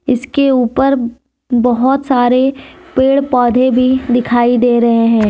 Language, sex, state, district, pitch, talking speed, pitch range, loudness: Hindi, female, Jharkhand, Deoghar, 250 Hz, 125 wpm, 240-270 Hz, -12 LUFS